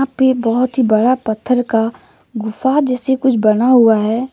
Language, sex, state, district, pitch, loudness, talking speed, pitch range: Hindi, female, Jharkhand, Deoghar, 245 Hz, -14 LUFS, 150 wpm, 225-260 Hz